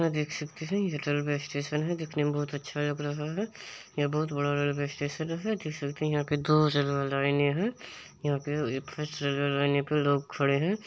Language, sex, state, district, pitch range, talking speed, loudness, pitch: Maithili, male, Bihar, Supaul, 145-155 Hz, 220 wpm, -30 LUFS, 145 Hz